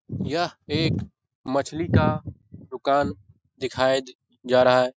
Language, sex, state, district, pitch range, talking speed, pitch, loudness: Hindi, male, Bihar, Darbhanga, 125-135 Hz, 110 wpm, 130 Hz, -24 LUFS